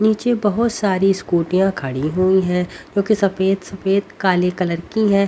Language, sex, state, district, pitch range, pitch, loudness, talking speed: Hindi, female, Haryana, Rohtak, 180-200 Hz, 195 Hz, -18 LUFS, 170 wpm